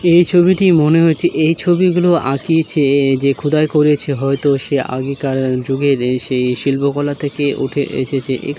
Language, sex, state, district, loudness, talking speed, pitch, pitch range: Bengali, male, West Bengal, Dakshin Dinajpur, -15 LUFS, 155 wpm, 145 Hz, 135-160 Hz